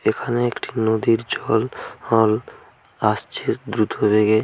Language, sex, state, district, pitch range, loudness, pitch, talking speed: Bengali, male, West Bengal, Paschim Medinipur, 110-115 Hz, -21 LUFS, 110 Hz, 110 wpm